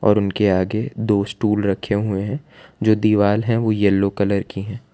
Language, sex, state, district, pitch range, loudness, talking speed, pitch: Hindi, male, Gujarat, Valsad, 100-110 Hz, -19 LUFS, 180 wpm, 105 Hz